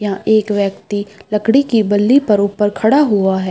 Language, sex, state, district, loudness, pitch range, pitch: Hindi, female, Bihar, Saharsa, -14 LUFS, 205-220 Hz, 210 Hz